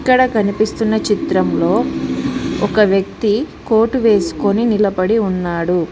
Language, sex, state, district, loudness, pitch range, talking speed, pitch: Telugu, female, Telangana, Mahabubabad, -16 LUFS, 195-225 Hz, 90 wpm, 210 Hz